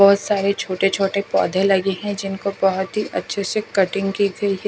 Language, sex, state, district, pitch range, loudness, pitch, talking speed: Hindi, female, Himachal Pradesh, Shimla, 195-200 Hz, -20 LUFS, 195 Hz, 205 wpm